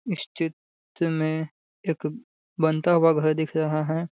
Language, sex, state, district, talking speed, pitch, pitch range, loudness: Hindi, male, Bihar, Sitamarhi, 145 wpm, 160 Hz, 155-165 Hz, -25 LUFS